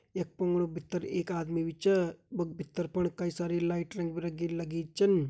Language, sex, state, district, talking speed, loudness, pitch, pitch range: Hindi, male, Uttarakhand, Uttarkashi, 195 wpm, -33 LUFS, 175 Hz, 170-180 Hz